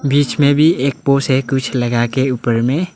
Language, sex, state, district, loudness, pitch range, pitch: Hindi, male, Arunachal Pradesh, Lower Dibang Valley, -15 LUFS, 125-145 Hz, 135 Hz